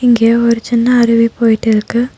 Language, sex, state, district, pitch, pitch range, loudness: Tamil, female, Tamil Nadu, Nilgiris, 235 Hz, 230-240 Hz, -11 LUFS